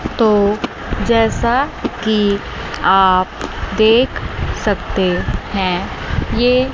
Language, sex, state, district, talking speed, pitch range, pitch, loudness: Hindi, female, Chandigarh, Chandigarh, 70 wpm, 190-235 Hz, 215 Hz, -16 LUFS